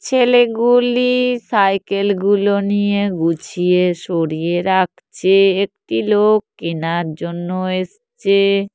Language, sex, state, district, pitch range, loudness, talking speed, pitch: Bengali, female, West Bengal, Jhargram, 180-210 Hz, -16 LUFS, 80 wpm, 195 Hz